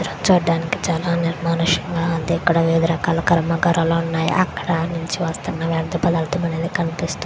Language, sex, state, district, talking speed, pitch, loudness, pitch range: Telugu, female, Andhra Pradesh, Krishna, 190 wpm, 165 Hz, -20 LUFS, 165-170 Hz